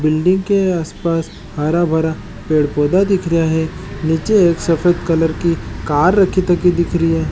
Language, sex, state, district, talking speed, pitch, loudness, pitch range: Marwari, male, Rajasthan, Nagaur, 170 wpm, 165 Hz, -16 LUFS, 155-175 Hz